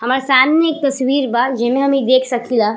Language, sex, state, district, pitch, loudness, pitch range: Bhojpuri, female, Uttar Pradesh, Ghazipur, 260 Hz, -15 LUFS, 245-275 Hz